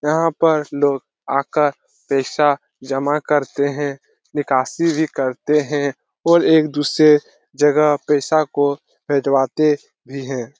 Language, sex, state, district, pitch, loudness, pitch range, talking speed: Hindi, male, Bihar, Lakhisarai, 145 Hz, -18 LUFS, 140-150 Hz, 115 wpm